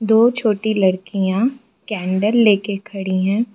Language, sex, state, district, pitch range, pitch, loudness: Hindi, female, Arunachal Pradesh, Lower Dibang Valley, 195-225 Hz, 210 Hz, -18 LUFS